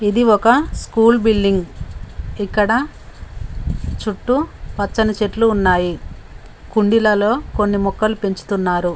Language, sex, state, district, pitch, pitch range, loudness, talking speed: Telugu, female, Telangana, Mahabubabad, 210 Hz, 195-225 Hz, -17 LUFS, 85 wpm